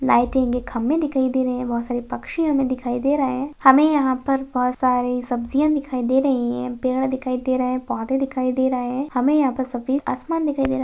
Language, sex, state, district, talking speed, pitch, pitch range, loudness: Hindi, female, Bihar, Saharsa, 245 wpm, 260 Hz, 250-270 Hz, -21 LUFS